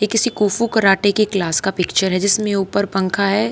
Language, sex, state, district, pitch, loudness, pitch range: Hindi, female, Haryana, Charkhi Dadri, 200 Hz, -17 LUFS, 195-215 Hz